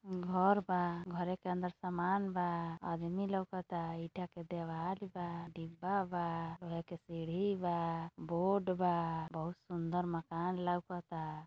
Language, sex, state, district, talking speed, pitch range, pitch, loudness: Bhojpuri, female, Uttar Pradesh, Deoria, 130 wpm, 170-180 Hz, 175 Hz, -38 LUFS